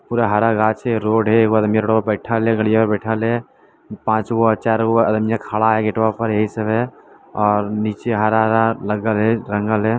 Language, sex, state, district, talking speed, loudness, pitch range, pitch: Maithili, male, Bihar, Lakhisarai, 210 wpm, -18 LUFS, 110-115 Hz, 110 Hz